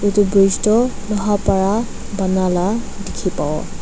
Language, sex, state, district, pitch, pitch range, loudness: Nagamese, female, Nagaland, Dimapur, 205 Hz, 195-210 Hz, -18 LUFS